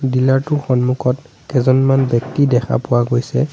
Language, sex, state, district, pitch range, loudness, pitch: Assamese, male, Assam, Sonitpur, 125-135 Hz, -16 LUFS, 130 Hz